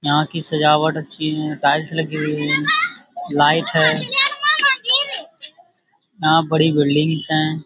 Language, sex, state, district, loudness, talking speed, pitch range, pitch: Hindi, male, Jharkhand, Sahebganj, -16 LUFS, 110 wpm, 150-240 Hz, 155 Hz